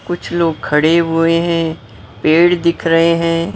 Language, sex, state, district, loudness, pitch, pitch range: Hindi, female, Maharashtra, Mumbai Suburban, -14 LUFS, 165 Hz, 160-170 Hz